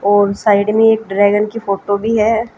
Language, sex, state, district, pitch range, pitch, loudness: Hindi, female, Haryana, Jhajjar, 200-225 Hz, 210 Hz, -14 LUFS